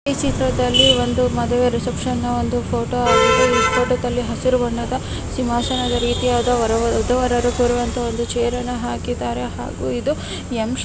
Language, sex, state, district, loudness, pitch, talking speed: Kannada, female, Karnataka, Bellary, -19 LUFS, 240 Hz, 155 wpm